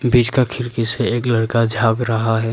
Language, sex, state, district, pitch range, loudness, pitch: Hindi, male, Arunachal Pradesh, Papum Pare, 115-120 Hz, -17 LUFS, 115 Hz